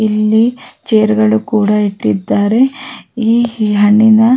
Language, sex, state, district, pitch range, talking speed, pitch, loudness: Kannada, female, Karnataka, Raichur, 210-230 Hz, 95 wpm, 215 Hz, -12 LUFS